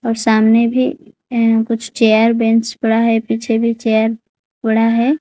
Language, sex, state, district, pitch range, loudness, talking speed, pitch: Hindi, female, Odisha, Khordha, 225-230 Hz, -15 LUFS, 160 wpm, 225 Hz